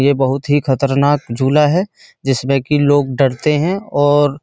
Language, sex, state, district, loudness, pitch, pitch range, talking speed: Hindi, male, Uttar Pradesh, Muzaffarnagar, -15 LUFS, 145 Hz, 135-145 Hz, 175 wpm